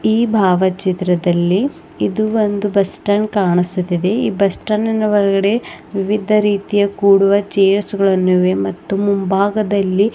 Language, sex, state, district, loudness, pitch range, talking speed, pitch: Kannada, female, Karnataka, Bidar, -16 LUFS, 190-210 Hz, 120 wpm, 200 Hz